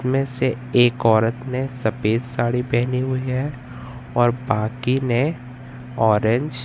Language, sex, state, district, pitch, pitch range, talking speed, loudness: Hindi, female, Madhya Pradesh, Katni, 125 Hz, 120-130 Hz, 135 wpm, -21 LUFS